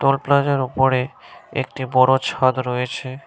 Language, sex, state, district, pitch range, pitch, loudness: Bengali, male, West Bengal, Cooch Behar, 130-135 Hz, 130 Hz, -19 LUFS